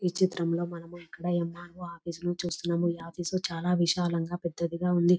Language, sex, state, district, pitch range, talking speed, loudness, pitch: Telugu, female, Telangana, Nalgonda, 170-175 Hz, 160 wpm, -30 LUFS, 175 Hz